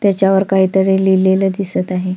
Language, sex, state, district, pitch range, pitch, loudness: Marathi, female, Maharashtra, Solapur, 190-195 Hz, 190 Hz, -14 LUFS